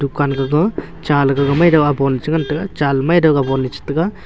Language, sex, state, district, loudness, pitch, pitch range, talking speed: Wancho, male, Arunachal Pradesh, Longding, -16 LUFS, 145 Hz, 135-160 Hz, 180 wpm